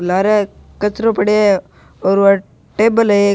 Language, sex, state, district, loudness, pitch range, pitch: Rajasthani, male, Rajasthan, Nagaur, -14 LUFS, 195-210 Hz, 200 Hz